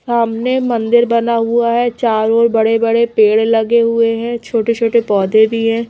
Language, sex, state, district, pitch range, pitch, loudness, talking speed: Hindi, female, Chhattisgarh, Raipur, 225-235 Hz, 230 Hz, -13 LUFS, 185 wpm